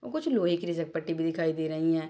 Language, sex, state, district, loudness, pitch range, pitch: Hindi, female, Bihar, Sitamarhi, -29 LUFS, 160-175 Hz, 165 Hz